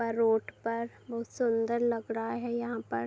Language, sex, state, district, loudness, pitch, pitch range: Hindi, female, Uttar Pradesh, Budaun, -32 LUFS, 230 Hz, 225-235 Hz